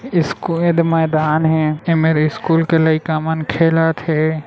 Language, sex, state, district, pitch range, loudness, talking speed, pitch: Chhattisgarhi, male, Chhattisgarh, Raigarh, 155-165 Hz, -16 LUFS, 190 wpm, 160 Hz